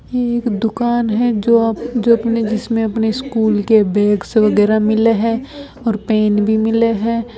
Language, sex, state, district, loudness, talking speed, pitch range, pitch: Hindi, female, Rajasthan, Nagaur, -15 LUFS, 145 wpm, 220-235 Hz, 225 Hz